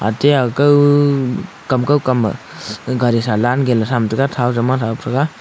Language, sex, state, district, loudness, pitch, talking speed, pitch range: Wancho, male, Arunachal Pradesh, Longding, -15 LUFS, 130 Hz, 110 wpm, 120-145 Hz